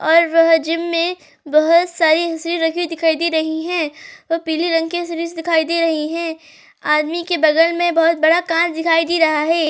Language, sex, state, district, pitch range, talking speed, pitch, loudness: Hindi, female, Uttar Pradesh, Etah, 320-335 Hz, 180 wpm, 330 Hz, -17 LUFS